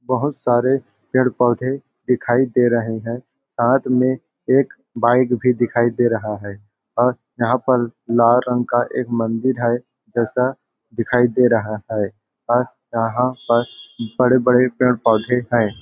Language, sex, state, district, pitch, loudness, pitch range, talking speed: Hindi, male, Chhattisgarh, Balrampur, 120 Hz, -19 LUFS, 115-125 Hz, 145 wpm